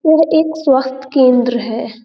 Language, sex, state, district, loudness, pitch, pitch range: Hindi, female, Uttar Pradesh, Budaun, -14 LUFS, 265 Hz, 245-315 Hz